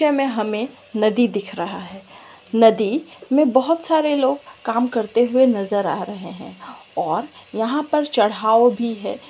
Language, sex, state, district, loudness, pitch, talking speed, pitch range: Hindi, female, Chhattisgarh, Bilaspur, -19 LUFS, 235 Hz, 170 wpm, 215-285 Hz